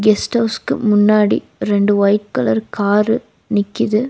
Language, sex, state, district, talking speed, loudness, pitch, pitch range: Tamil, female, Tamil Nadu, Nilgiris, 115 wpm, -16 LUFS, 210 Hz, 205-215 Hz